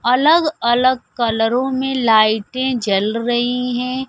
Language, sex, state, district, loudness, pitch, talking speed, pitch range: Hindi, female, Bihar, Kaimur, -17 LUFS, 245 Hz, 115 wpm, 230-260 Hz